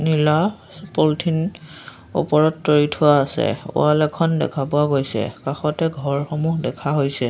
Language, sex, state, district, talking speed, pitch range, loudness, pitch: Assamese, female, Assam, Sonitpur, 125 wpm, 145-160 Hz, -20 LUFS, 150 Hz